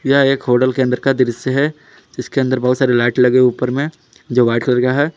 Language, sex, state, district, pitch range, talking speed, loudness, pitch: Hindi, male, Jharkhand, Palamu, 125-135 Hz, 255 wpm, -15 LUFS, 130 Hz